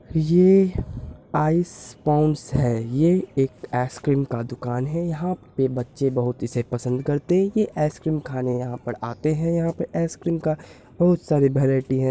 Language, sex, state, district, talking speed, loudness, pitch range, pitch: Hindi, male, Bihar, Purnia, 180 wpm, -23 LUFS, 125-165 Hz, 140 Hz